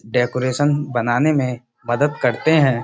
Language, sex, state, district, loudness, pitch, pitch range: Hindi, male, Uttar Pradesh, Budaun, -19 LUFS, 130 Hz, 120-145 Hz